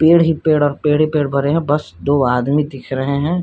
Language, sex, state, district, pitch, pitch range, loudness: Hindi, male, Chhattisgarh, Korba, 145 Hz, 140-155 Hz, -16 LUFS